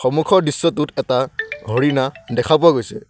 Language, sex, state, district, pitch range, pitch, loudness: Assamese, male, Assam, Sonitpur, 130-165 Hz, 145 Hz, -17 LUFS